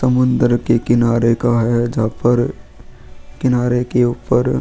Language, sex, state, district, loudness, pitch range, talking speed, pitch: Hindi, male, Goa, North and South Goa, -16 LUFS, 115-125 Hz, 130 wpm, 120 Hz